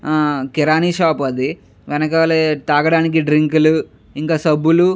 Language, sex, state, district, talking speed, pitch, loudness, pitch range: Telugu, male, Andhra Pradesh, Chittoor, 135 wpm, 155 Hz, -16 LUFS, 150-160 Hz